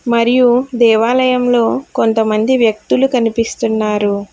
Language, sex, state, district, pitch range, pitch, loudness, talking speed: Telugu, female, Telangana, Hyderabad, 220-245 Hz, 230 Hz, -13 LUFS, 70 wpm